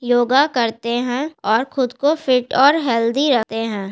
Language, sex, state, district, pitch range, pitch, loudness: Hindi, female, Bihar, Gaya, 230-275 Hz, 250 Hz, -18 LUFS